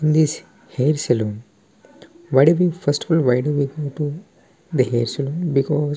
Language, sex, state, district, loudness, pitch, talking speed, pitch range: Telugu, male, Telangana, Nalgonda, -20 LUFS, 145 Hz, 150 wpm, 130-155 Hz